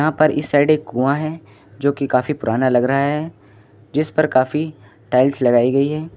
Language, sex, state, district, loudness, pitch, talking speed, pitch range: Hindi, male, Uttar Pradesh, Lucknow, -18 LUFS, 140 Hz, 205 wpm, 120-150 Hz